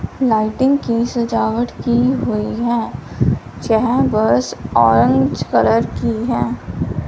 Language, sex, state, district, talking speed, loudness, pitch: Hindi, female, Punjab, Fazilka, 100 wpm, -17 LUFS, 220 Hz